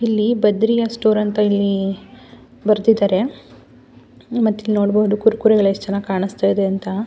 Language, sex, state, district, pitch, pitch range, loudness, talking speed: Kannada, female, Karnataka, Dakshina Kannada, 205 Hz, 195-220 Hz, -17 LUFS, 135 wpm